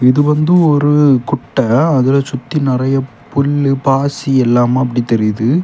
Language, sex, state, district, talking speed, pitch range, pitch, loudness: Tamil, male, Tamil Nadu, Kanyakumari, 130 wpm, 125-145 Hz, 135 Hz, -13 LUFS